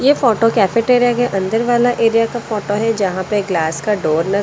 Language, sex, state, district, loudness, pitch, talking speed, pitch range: Hindi, female, Delhi, New Delhi, -16 LUFS, 225 Hz, 215 wpm, 195-240 Hz